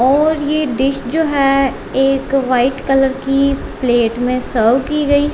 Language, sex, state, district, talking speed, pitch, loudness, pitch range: Hindi, female, Punjab, Kapurthala, 155 wpm, 270 Hz, -15 LUFS, 255-285 Hz